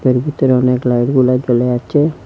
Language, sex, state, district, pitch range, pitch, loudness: Bengali, male, Assam, Hailakandi, 125-130 Hz, 125 Hz, -14 LUFS